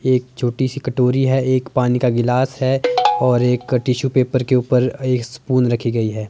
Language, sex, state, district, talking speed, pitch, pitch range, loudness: Hindi, male, Himachal Pradesh, Shimla, 210 wpm, 125 Hz, 125-130 Hz, -18 LUFS